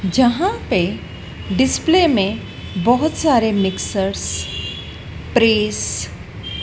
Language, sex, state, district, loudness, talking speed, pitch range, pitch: Hindi, female, Madhya Pradesh, Dhar, -18 LUFS, 80 wpm, 185-265 Hz, 215 Hz